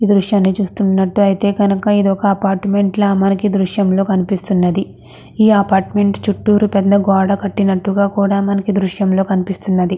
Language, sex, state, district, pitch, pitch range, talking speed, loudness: Telugu, female, Andhra Pradesh, Krishna, 200 Hz, 195-200 Hz, 120 wpm, -15 LUFS